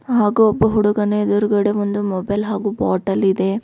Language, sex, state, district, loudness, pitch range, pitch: Kannada, female, Karnataka, Bidar, -18 LUFS, 200-210 Hz, 205 Hz